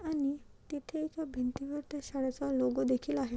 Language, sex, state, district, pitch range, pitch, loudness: Marathi, female, Maharashtra, Chandrapur, 260-295 Hz, 280 Hz, -35 LUFS